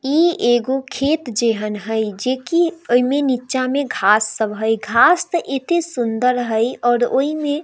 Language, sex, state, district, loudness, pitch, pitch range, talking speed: Hindi, female, Bihar, Darbhanga, -18 LUFS, 255 Hz, 230-290 Hz, 155 wpm